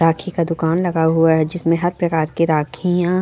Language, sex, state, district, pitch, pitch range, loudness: Hindi, female, Uttarakhand, Uttarkashi, 165 Hz, 160-175 Hz, -18 LUFS